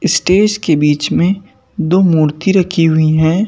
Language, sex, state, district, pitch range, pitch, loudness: Hindi, male, Madhya Pradesh, Bhopal, 160-195 Hz, 175 Hz, -13 LUFS